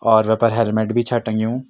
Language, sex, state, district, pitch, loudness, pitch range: Garhwali, male, Uttarakhand, Tehri Garhwal, 115 Hz, -18 LUFS, 110-120 Hz